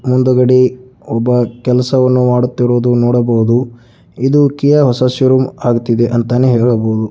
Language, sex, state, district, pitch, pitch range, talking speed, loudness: Kannada, male, Karnataka, Bijapur, 125 Hz, 120-130 Hz, 100 wpm, -12 LUFS